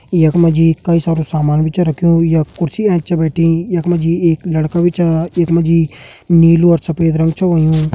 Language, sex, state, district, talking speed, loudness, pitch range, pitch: Hindi, male, Uttarakhand, Uttarkashi, 240 wpm, -13 LUFS, 160-170 Hz, 165 Hz